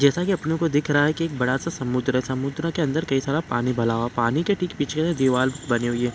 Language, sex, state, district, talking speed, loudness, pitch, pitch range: Hindi, male, Bihar, Saran, 295 wpm, -23 LUFS, 140 Hz, 125-160 Hz